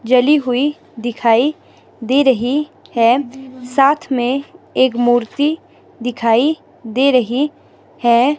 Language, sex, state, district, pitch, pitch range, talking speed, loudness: Hindi, female, Himachal Pradesh, Shimla, 255 Hz, 240-285 Hz, 100 wpm, -16 LUFS